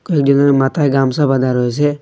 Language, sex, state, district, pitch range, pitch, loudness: Bengali, male, Assam, Hailakandi, 135-145 Hz, 140 Hz, -14 LUFS